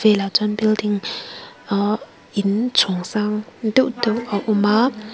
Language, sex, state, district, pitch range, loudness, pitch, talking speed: Mizo, female, Mizoram, Aizawl, 205-225 Hz, -20 LUFS, 215 Hz, 130 wpm